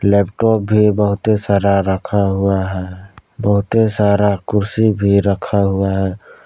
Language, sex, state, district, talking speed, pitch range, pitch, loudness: Hindi, male, Jharkhand, Palamu, 130 wpm, 95-105 Hz, 100 Hz, -16 LUFS